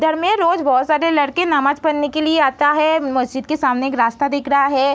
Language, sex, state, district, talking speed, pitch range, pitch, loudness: Hindi, female, Bihar, Araria, 230 wpm, 270-310 Hz, 290 Hz, -17 LUFS